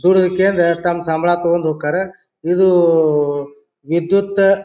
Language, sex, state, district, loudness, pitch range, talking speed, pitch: Kannada, male, Karnataka, Bijapur, -16 LUFS, 160-190 Hz, 105 wpm, 175 Hz